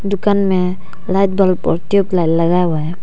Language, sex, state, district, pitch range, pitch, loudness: Hindi, female, Arunachal Pradesh, Papum Pare, 170-195 Hz, 185 Hz, -15 LUFS